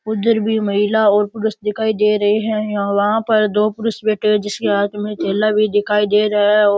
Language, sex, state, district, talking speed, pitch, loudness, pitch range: Rajasthani, male, Rajasthan, Churu, 250 wpm, 210 Hz, -16 LUFS, 205-215 Hz